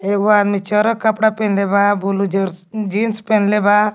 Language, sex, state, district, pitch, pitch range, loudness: Magahi, female, Jharkhand, Palamu, 205 Hz, 200-215 Hz, -16 LUFS